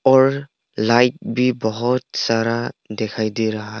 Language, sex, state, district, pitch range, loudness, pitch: Hindi, male, Arunachal Pradesh, Longding, 110-125 Hz, -20 LUFS, 115 Hz